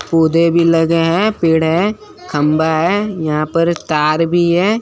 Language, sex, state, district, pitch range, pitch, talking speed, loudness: Hindi, female, Chandigarh, Chandigarh, 160-175 Hz, 165 Hz, 150 wpm, -14 LUFS